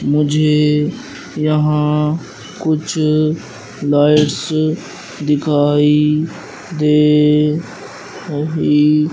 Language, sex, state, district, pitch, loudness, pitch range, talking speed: Hindi, male, Madhya Pradesh, Katni, 150 Hz, -15 LUFS, 150-155 Hz, 45 wpm